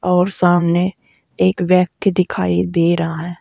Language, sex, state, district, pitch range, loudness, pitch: Hindi, female, Uttar Pradesh, Saharanpur, 170-185 Hz, -16 LUFS, 175 Hz